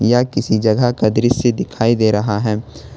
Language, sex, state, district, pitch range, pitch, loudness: Hindi, male, Jharkhand, Ranchi, 110-120 Hz, 115 Hz, -16 LUFS